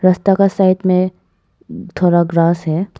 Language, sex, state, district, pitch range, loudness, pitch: Hindi, female, Arunachal Pradesh, Papum Pare, 170-190 Hz, -14 LUFS, 185 Hz